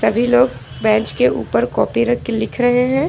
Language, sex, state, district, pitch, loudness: Hindi, female, Jharkhand, Ranchi, 170 Hz, -17 LUFS